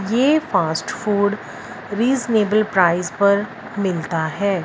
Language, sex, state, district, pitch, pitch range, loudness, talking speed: Hindi, female, Punjab, Fazilka, 200 Hz, 180-215 Hz, -19 LUFS, 105 wpm